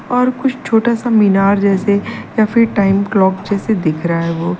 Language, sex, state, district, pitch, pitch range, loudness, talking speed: Hindi, female, Uttar Pradesh, Lalitpur, 200 Hz, 195-230 Hz, -14 LUFS, 195 wpm